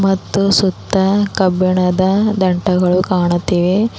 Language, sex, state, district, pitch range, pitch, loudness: Kannada, female, Karnataka, Bidar, 180-195 Hz, 190 Hz, -14 LUFS